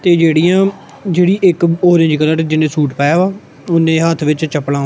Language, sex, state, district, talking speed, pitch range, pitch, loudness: Punjabi, male, Punjab, Kapurthala, 185 wpm, 155-180 Hz, 165 Hz, -13 LUFS